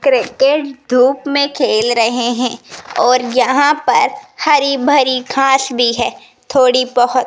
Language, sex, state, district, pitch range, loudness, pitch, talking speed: Hindi, female, Rajasthan, Jaipur, 245-285 Hz, -14 LUFS, 260 Hz, 140 wpm